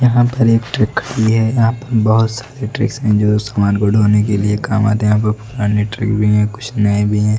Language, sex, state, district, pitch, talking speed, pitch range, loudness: Hindi, male, Odisha, Nuapada, 110 Hz, 225 wpm, 105-115 Hz, -15 LUFS